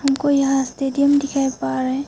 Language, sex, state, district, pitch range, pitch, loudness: Hindi, female, Arunachal Pradesh, Papum Pare, 265-280 Hz, 275 Hz, -19 LUFS